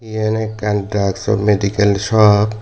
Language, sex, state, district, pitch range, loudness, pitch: Chakma, male, Tripura, Dhalai, 100-110 Hz, -16 LUFS, 105 Hz